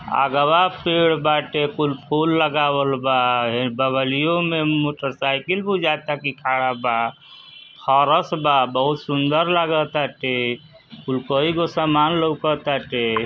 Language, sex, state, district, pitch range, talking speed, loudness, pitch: Bhojpuri, male, Uttar Pradesh, Ghazipur, 130-155 Hz, 110 wpm, -20 LUFS, 145 Hz